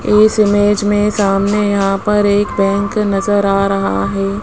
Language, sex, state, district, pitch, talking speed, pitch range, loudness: Hindi, female, Rajasthan, Jaipur, 205 Hz, 165 wpm, 195-210 Hz, -14 LUFS